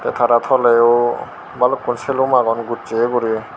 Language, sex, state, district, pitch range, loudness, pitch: Chakma, male, Tripura, Unakoti, 115-125 Hz, -16 LUFS, 120 Hz